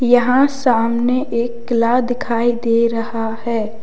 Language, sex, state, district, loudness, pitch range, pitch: Hindi, male, Uttar Pradesh, Lalitpur, -17 LUFS, 230-245 Hz, 235 Hz